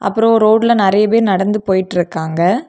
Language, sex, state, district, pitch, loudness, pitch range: Tamil, female, Tamil Nadu, Kanyakumari, 200 Hz, -13 LUFS, 185-220 Hz